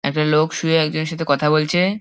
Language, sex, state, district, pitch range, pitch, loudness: Bengali, male, West Bengal, Dakshin Dinajpur, 150-165 Hz, 155 Hz, -18 LUFS